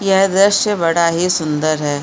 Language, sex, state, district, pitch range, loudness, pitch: Hindi, female, Chhattisgarh, Balrampur, 155-195 Hz, -15 LUFS, 170 Hz